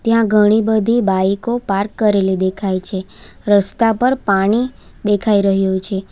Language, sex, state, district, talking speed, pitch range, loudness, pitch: Gujarati, female, Gujarat, Valsad, 135 wpm, 195-225 Hz, -16 LUFS, 205 Hz